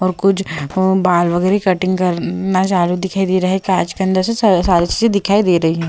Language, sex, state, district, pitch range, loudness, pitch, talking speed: Hindi, female, Goa, North and South Goa, 180-190 Hz, -15 LUFS, 185 Hz, 215 wpm